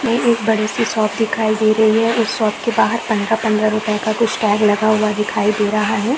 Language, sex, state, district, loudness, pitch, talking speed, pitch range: Hindi, female, Jharkhand, Jamtara, -16 LUFS, 220 Hz, 250 wpm, 215-225 Hz